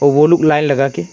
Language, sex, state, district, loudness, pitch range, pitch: Hindi, male, Arunachal Pradesh, Longding, -13 LUFS, 140-155 Hz, 150 Hz